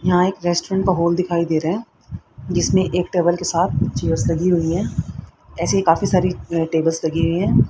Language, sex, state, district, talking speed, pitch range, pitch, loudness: Hindi, female, Haryana, Rohtak, 195 wpm, 165-180 Hz, 170 Hz, -19 LUFS